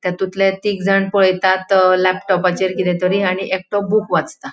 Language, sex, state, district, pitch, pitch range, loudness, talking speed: Konkani, female, Goa, North and South Goa, 190 Hz, 185-195 Hz, -16 LUFS, 135 wpm